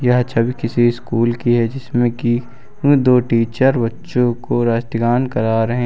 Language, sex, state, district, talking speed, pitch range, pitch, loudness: Hindi, male, Uttar Pradesh, Lucknow, 165 wpm, 115-125 Hz, 120 Hz, -17 LUFS